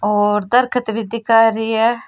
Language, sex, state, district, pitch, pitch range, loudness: Rajasthani, female, Rajasthan, Churu, 225 Hz, 220-235 Hz, -16 LUFS